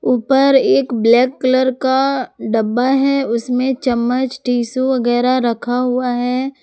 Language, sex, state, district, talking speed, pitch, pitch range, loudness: Hindi, female, Jharkhand, Ranchi, 125 wpm, 250 Hz, 245-265 Hz, -16 LUFS